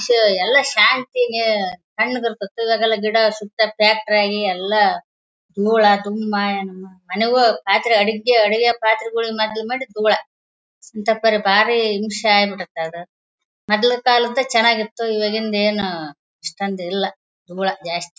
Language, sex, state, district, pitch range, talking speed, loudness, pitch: Kannada, female, Karnataka, Bellary, 195-225 Hz, 105 wpm, -18 LUFS, 215 Hz